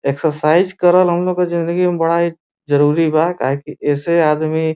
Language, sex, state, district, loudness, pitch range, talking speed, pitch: Bhojpuri, male, Uttar Pradesh, Varanasi, -16 LUFS, 150-175 Hz, 175 wpm, 165 Hz